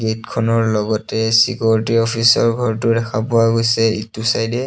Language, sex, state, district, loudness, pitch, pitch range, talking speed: Assamese, male, Assam, Sonitpur, -16 LUFS, 115 Hz, 110-115 Hz, 130 wpm